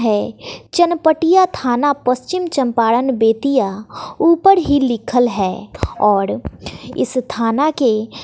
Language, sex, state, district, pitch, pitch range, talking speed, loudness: Hindi, female, Bihar, West Champaran, 255 Hz, 225-315 Hz, 100 wpm, -16 LUFS